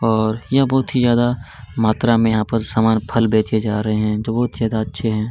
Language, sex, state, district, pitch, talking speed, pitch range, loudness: Hindi, male, Chhattisgarh, Kabirdham, 110 Hz, 205 wpm, 110-120 Hz, -18 LUFS